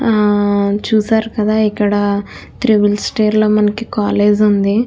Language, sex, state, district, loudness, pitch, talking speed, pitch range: Telugu, female, Andhra Pradesh, Krishna, -14 LUFS, 210 Hz, 125 wpm, 205-215 Hz